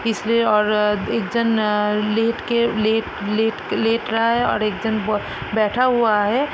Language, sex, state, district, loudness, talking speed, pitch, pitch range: Hindi, female, Bihar, Sitamarhi, -19 LUFS, 195 wpm, 220 Hz, 210-230 Hz